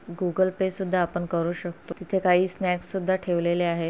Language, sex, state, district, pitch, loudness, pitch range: Marathi, female, Maharashtra, Pune, 180 Hz, -26 LUFS, 175-185 Hz